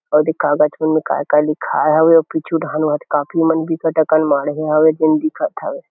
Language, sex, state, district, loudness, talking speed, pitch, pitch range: Chhattisgarhi, male, Chhattisgarh, Kabirdham, -16 LUFS, 215 wpm, 155 Hz, 150-165 Hz